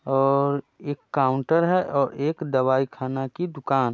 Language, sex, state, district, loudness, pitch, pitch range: Hindi, male, Bihar, Muzaffarpur, -24 LUFS, 140 Hz, 135-150 Hz